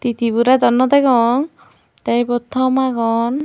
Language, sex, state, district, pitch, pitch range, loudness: Chakma, female, Tripura, Unakoti, 245 Hz, 235-260 Hz, -15 LUFS